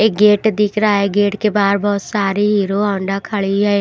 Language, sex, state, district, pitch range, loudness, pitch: Hindi, female, Maharashtra, Washim, 200-210 Hz, -16 LUFS, 205 Hz